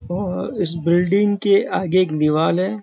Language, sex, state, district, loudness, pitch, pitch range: Hindi, male, Uttar Pradesh, Gorakhpur, -18 LUFS, 185 Hz, 170-195 Hz